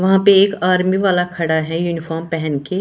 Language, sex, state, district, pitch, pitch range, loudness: Hindi, female, Maharashtra, Washim, 180 Hz, 165-190 Hz, -16 LUFS